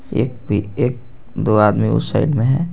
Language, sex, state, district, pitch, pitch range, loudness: Hindi, male, Jharkhand, Garhwa, 120 Hz, 110-130 Hz, -18 LUFS